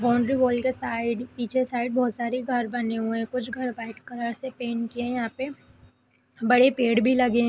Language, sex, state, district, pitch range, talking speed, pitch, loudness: Hindi, female, Uttar Pradesh, Etah, 235-255 Hz, 215 wpm, 245 Hz, -25 LUFS